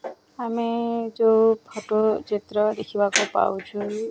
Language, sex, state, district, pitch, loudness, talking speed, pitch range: Odia, male, Odisha, Nuapada, 215 Hz, -23 LUFS, 100 wpm, 210-230 Hz